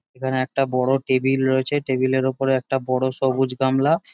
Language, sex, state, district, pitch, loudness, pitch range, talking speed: Bengali, male, West Bengal, Jhargram, 130 Hz, -21 LUFS, 130-135 Hz, 175 wpm